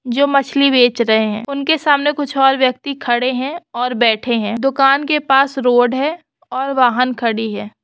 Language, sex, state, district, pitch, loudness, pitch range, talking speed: Hindi, female, West Bengal, Purulia, 260 Hz, -15 LUFS, 240-280 Hz, 175 wpm